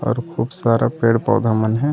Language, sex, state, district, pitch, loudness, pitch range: Chhattisgarhi, male, Chhattisgarh, Raigarh, 115 Hz, -18 LUFS, 115-130 Hz